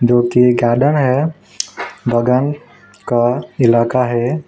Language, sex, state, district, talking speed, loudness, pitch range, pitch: Hindi, male, West Bengal, Alipurduar, 105 wpm, -15 LUFS, 120-135 Hz, 125 Hz